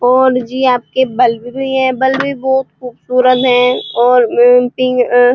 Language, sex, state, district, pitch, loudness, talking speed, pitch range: Hindi, female, Uttar Pradesh, Muzaffarnagar, 250 Hz, -12 LUFS, 145 wpm, 245-260 Hz